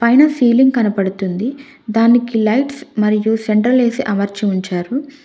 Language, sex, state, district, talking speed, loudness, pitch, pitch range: Telugu, female, Telangana, Hyderabad, 115 wpm, -15 LUFS, 230 Hz, 210-265 Hz